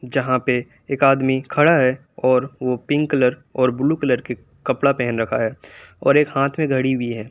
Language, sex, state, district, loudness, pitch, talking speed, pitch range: Hindi, male, Jharkhand, Palamu, -19 LUFS, 130 Hz, 205 wpm, 125-140 Hz